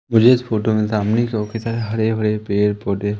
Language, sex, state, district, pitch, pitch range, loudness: Hindi, male, Madhya Pradesh, Umaria, 110 Hz, 105-115 Hz, -18 LUFS